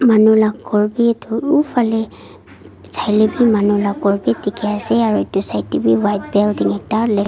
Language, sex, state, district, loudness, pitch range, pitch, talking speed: Nagamese, female, Nagaland, Dimapur, -16 LUFS, 195-225 Hz, 210 Hz, 180 wpm